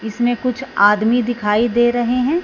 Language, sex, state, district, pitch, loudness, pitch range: Hindi, female, Punjab, Fazilka, 240 Hz, -16 LUFS, 220-250 Hz